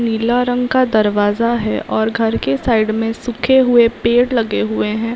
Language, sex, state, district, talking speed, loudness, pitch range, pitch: Hindi, female, Bihar, Saharsa, 185 wpm, -15 LUFS, 215-245 Hz, 230 Hz